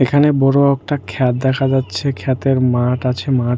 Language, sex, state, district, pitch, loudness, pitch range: Bengali, male, West Bengal, Jhargram, 130 Hz, -16 LUFS, 125-140 Hz